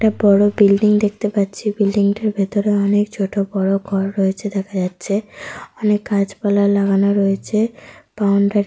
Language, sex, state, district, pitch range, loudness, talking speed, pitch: Bengali, female, Jharkhand, Sahebganj, 195-210 Hz, -17 LUFS, 150 wpm, 200 Hz